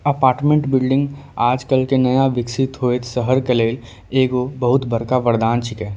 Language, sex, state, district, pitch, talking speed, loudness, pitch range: Angika, male, Bihar, Bhagalpur, 125 Hz, 150 wpm, -18 LUFS, 120-135 Hz